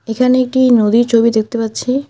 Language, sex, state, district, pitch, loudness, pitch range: Bengali, female, West Bengal, Alipurduar, 235 Hz, -13 LUFS, 225-255 Hz